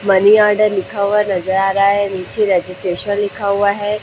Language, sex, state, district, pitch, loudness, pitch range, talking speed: Hindi, female, Chhattisgarh, Raipur, 200 Hz, -15 LUFS, 190-205 Hz, 195 wpm